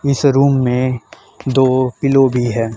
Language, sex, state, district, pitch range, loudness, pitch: Hindi, male, Haryana, Charkhi Dadri, 125-135 Hz, -14 LUFS, 130 Hz